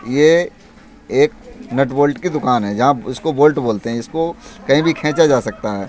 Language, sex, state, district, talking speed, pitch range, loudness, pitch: Hindi, male, Uttar Pradesh, Budaun, 195 wpm, 125-165 Hz, -16 LUFS, 145 Hz